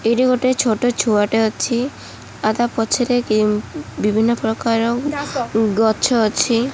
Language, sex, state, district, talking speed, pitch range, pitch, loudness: Odia, female, Odisha, Khordha, 100 wpm, 220-245 Hz, 230 Hz, -18 LUFS